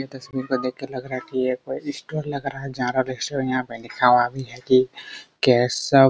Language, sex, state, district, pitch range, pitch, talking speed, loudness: Hindi, male, Bihar, Araria, 125-135 Hz, 130 Hz, 235 wpm, -23 LUFS